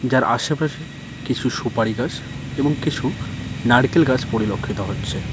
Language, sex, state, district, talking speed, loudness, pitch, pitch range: Bengali, male, West Bengal, Cooch Behar, 125 wpm, -21 LUFS, 130 Hz, 120-135 Hz